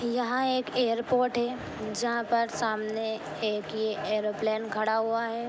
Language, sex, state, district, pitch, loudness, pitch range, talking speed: Hindi, female, Jharkhand, Jamtara, 225 Hz, -29 LUFS, 215-240 Hz, 130 wpm